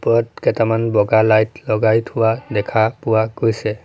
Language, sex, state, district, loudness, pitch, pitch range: Assamese, male, Assam, Sonitpur, -17 LUFS, 110 Hz, 110-115 Hz